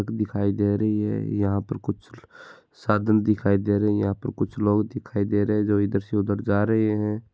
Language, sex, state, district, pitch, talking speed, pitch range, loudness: Marwari, male, Rajasthan, Churu, 105 Hz, 220 wpm, 100-105 Hz, -24 LUFS